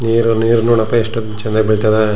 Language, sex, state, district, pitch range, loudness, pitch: Kannada, male, Karnataka, Chamarajanagar, 110-115 Hz, -14 LUFS, 110 Hz